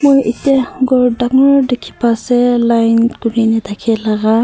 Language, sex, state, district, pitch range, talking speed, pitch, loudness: Nagamese, female, Nagaland, Kohima, 230-255 Hz, 120 wpm, 240 Hz, -13 LUFS